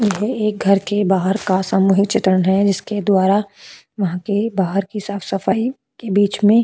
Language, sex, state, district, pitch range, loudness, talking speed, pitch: Hindi, female, Goa, North and South Goa, 195-210 Hz, -18 LUFS, 170 wpm, 200 Hz